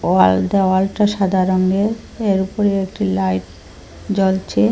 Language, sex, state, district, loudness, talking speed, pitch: Bengali, female, Assam, Hailakandi, -17 LUFS, 115 wpm, 190 Hz